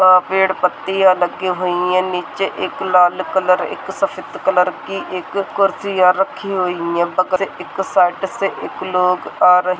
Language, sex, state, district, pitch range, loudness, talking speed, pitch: Hindi, male, Rajasthan, Churu, 180-190 Hz, -17 LUFS, 170 wpm, 185 Hz